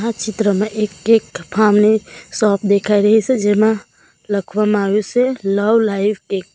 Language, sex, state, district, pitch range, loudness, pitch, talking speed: Gujarati, female, Gujarat, Valsad, 200-220 Hz, -16 LUFS, 210 Hz, 155 wpm